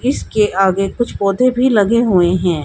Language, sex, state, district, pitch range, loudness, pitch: Hindi, female, Haryana, Jhajjar, 190-240 Hz, -14 LUFS, 205 Hz